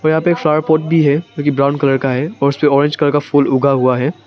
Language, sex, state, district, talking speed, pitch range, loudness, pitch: Hindi, male, Arunachal Pradesh, Papum Pare, 295 wpm, 140-155 Hz, -14 LUFS, 145 Hz